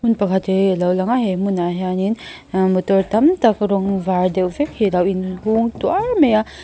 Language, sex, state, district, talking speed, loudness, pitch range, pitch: Mizo, female, Mizoram, Aizawl, 215 wpm, -18 LUFS, 185-220 Hz, 195 Hz